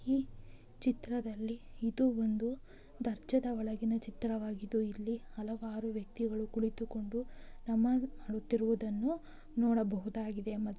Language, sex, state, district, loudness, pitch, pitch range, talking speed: Kannada, female, Karnataka, Belgaum, -36 LUFS, 225 Hz, 220-235 Hz, 100 wpm